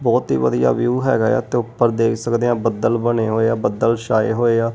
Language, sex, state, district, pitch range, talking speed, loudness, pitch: Punjabi, male, Punjab, Kapurthala, 110-120 Hz, 240 wpm, -18 LUFS, 115 Hz